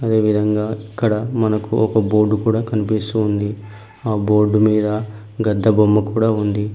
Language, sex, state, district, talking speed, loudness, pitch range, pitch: Telugu, male, Telangana, Mahabubabad, 140 wpm, -18 LUFS, 105-110 Hz, 105 Hz